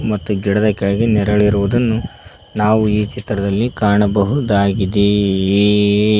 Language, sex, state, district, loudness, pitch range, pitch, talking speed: Kannada, male, Karnataka, Koppal, -15 LUFS, 100-105 Hz, 105 Hz, 75 wpm